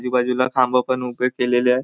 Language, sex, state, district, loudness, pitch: Marathi, male, Maharashtra, Nagpur, -20 LUFS, 125 Hz